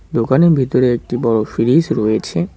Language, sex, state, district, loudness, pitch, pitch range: Bengali, male, West Bengal, Cooch Behar, -15 LUFS, 120 Hz, 110-130 Hz